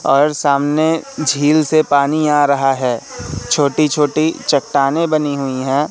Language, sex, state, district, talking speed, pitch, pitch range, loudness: Hindi, male, Madhya Pradesh, Katni, 130 wpm, 145 Hz, 140-155 Hz, -15 LUFS